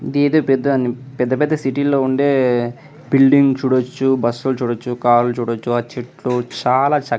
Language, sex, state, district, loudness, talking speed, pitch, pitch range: Telugu, male, Andhra Pradesh, Anantapur, -17 LUFS, 125 wpm, 130 Hz, 120-140 Hz